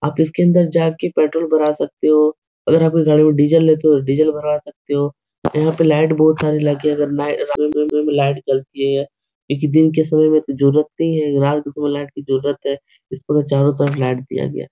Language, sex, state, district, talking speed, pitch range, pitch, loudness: Hindi, male, Bihar, Supaul, 220 wpm, 140-155 Hz, 150 Hz, -16 LUFS